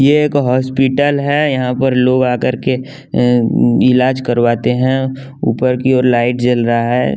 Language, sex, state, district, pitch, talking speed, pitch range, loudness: Hindi, male, Bihar, West Champaran, 125 Hz, 165 wpm, 120-135 Hz, -14 LUFS